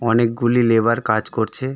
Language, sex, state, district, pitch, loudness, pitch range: Bengali, male, West Bengal, Darjeeling, 115 Hz, -18 LUFS, 115-120 Hz